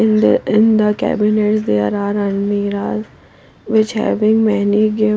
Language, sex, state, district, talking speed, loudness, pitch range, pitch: English, female, Punjab, Pathankot, 140 wpm, -15 LUFS, 200-215 Hz, 210 Hz